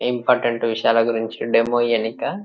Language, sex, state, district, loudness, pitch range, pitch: Telugu, male, Telangana, Nalgonda, -20 LUFS, 115-120 Hz, 115 Hz